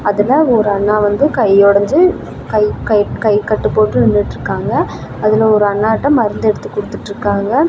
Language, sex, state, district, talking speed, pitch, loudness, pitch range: Tamil, female, Tamil Nadu, Namakkal, 135 wpm, 210 Hz, -13 LUFS, 200-220 Hz